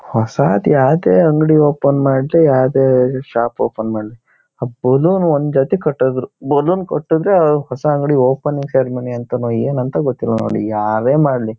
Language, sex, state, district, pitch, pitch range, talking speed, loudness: Kannada, male, Karnataka, Shimoga, 130 Hz, 120-150 Hz, 140 wpm, -15 LUFS